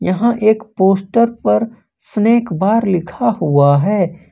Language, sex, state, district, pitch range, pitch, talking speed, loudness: Hindi, male, Jharkhand, Ranchi, 175-230 Hz, 205 Hz, 125 wpm, -15 LUFS